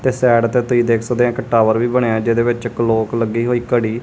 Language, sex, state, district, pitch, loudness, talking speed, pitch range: Punjabi, male, Punjab, Kapurthala, 120 Hz, -16 LUFS, 255 wpm, 115-120 Hz